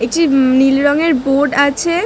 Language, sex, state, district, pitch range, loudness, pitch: Bengali, female, West Bengal, Dakshin Dinajpur, 270-320 Hz, -13 LUFS, 285 Hz